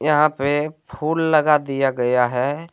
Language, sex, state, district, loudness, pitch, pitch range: Hindi, male, Jharkhand, Deoghar, -19 LUFS, 150 Hz, 135-155 Hz